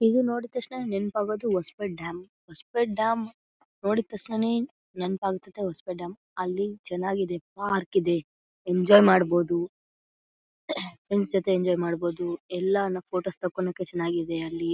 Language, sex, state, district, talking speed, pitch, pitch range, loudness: Kannada, female, Karnataka, Bellary, 110 wpm, 190 Hz, 175-210 Hz, -27 LUFS